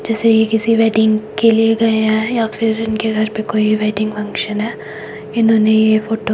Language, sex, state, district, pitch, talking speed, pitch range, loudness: Hindi, female, Himachal Pradesh, Shimla, 220 Hz, 210 wpm, 215-225 Hz, -15 LUFS